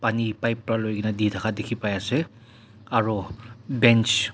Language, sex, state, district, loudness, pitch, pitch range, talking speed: Nagamese, male, Nagaland, Dimapur, -24 LUFS, 115 Hz, 110-115 Hz, 180 wpm